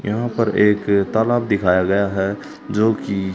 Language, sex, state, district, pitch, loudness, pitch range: Hindi, male, Haryana, Charkhi Dadri, 105 Hz, -18 LUFS, 100-110 Hz